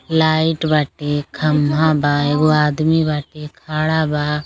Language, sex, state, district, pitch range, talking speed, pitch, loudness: Bhojpuri, female, Uttar Pradesh, Gorakhpur, 150-155 Hz, 135 wpm, 155 Hz, -17 LUFS